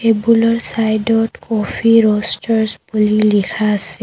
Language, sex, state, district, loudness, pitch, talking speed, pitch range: Assamese, female, Assam, Kamrup Metropolitan, -15 LUFS, 220 Hz, 105 wpm, 210-225 Hz